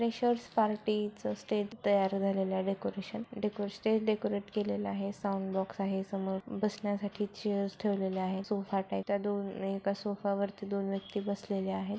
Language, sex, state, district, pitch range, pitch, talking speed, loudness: Marathi, female, Maharashtra, Solapur, 195-210 Hz, 200 Hz, 150 wpm, -34 LUFS